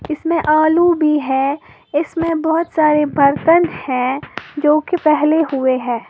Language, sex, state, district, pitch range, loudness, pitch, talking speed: Hindi, female, Uttar Pradesh, Lalitpur, 280-320 Hz, -16 LUFS, 305 Hz, 130 wpm